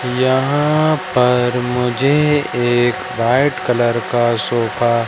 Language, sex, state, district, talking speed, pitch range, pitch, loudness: Hindi, male, Madhya Pradesh, Katni, 95 wpm, 120-140 Hz, 125 Hz, -16 LUFS